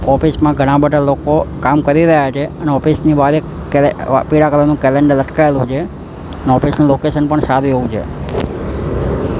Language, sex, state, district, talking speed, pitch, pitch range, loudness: Gujarati, male, Gujarat, Gandhinagar, 180 wpm, 145 Hz, 135-150 Hz, -13 LUFS